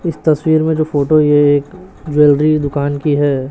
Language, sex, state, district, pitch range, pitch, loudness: Hindi, male, Chhattisgarh, Raipur, 145-155 Hz, 150 Hz, -13 LUFS